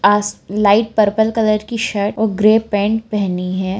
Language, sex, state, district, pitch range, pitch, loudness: Hindi, female, Jharkhand, Jamtara, 200-220 Hz, 210 Hz, -16 LUFS